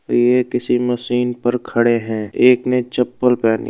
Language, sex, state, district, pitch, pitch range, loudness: Hindi, male, Uttar Pradesh, Budaun, 125 Hz, 120-125 Hz, -17 LUFS